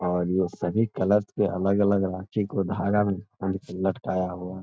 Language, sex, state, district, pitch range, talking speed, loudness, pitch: Hindi, male, Bihar, Jamui, 95-100 Hz, 195 wpm, -26 LUFS, 95 Hz